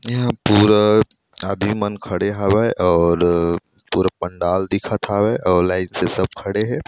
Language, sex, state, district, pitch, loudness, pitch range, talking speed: Chhattisgarhi, male, Chhattisgarh, Rajnandgaon, 100 Hz, -18 LUFS, 90-105 Hz, 140 wpm